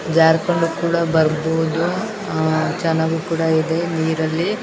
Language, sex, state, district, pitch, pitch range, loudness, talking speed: Kannada, female, Karnataka, Raichur, 165 Hz, 160-170 Hz, -19 LUFS, 115 wpm